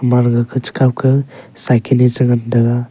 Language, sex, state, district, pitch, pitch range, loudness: Wancho, male, Arunachal Pradesh, Longding, 125 Hz, 120-130 Hz, -14 LUFS